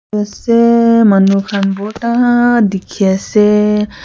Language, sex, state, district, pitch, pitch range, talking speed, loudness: Nagamese, female, Nagaland, Kohima, 210 Hz, 200-235 Hz, 90 wpm, -12 LUFS